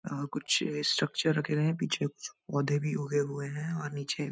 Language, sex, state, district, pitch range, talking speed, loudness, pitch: Hindi, male, Uttarakhand, Uttarkashi, 140-155 Hz, 220 wpm, -31 LUFS, 145 Hz